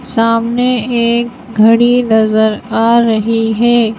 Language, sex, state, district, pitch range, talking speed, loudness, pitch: Hindi, female, Madhya Pradesh, Bhopal, 220-240 Hz, 105 wpm, -12 LUFS, 230 Hz